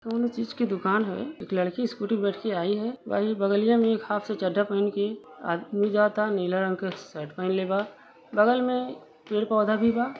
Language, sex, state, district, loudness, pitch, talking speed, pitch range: Hindi, female, Uttar Pradesh, Gorakhpur, -26 LUFS, 210 Hz, 210 wpm, 195-225 Hz